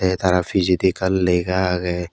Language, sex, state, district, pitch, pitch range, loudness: Chakma, male, Tripura, West Tripura, 90 Hz, 90-95 Hz, -19 LUFS